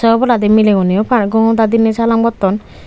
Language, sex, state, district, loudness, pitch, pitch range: Chakma, female, Tripura, Unakoti, -12 LUFS, 225 Hz, 210-230 Hz